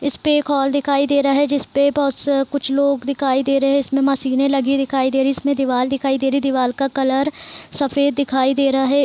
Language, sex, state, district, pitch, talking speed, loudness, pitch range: Hindi, female, Bihar, Sitamarhi, 275 Hz, 250 wpm, -18 LUFS, 270-280 Hz